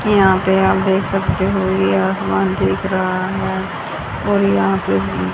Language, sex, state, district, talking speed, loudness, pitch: Hindi, female, Haryana, Charkhi Dadri, 155 wpm, -17 LUFS, 100 Hz